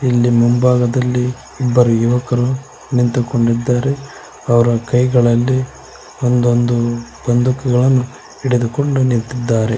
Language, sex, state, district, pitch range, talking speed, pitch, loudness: Kannada, male, Karnataka, Koppal, 120-125 Hz, 65 wpm, 125 Hz, -15 LUFS